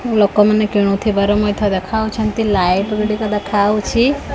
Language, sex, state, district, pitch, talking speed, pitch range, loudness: Odia, female, Odisha, Khordha, 210 Hz, 110 wpm, 205-215 Hz, -16 LUFS